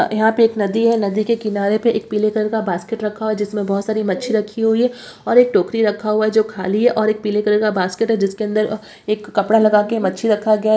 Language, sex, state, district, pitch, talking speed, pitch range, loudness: Hindi, female, Bihar, Jamui, 215 Hz, 280 wpm, 210-220 Hz, -17 LUFS